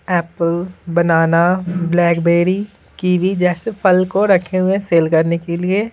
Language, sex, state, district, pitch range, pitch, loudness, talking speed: Hindi, male, Bihar, Patna, 170-190 Hz, 180 Hz, -16 LUFS, 140 wpm